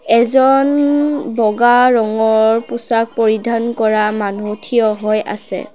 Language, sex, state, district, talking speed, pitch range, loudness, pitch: Assamese, female, Assam, Kamrup Metropolitan, 105 wpm, 215-240 Hz, -14 LUFS, 230 Hz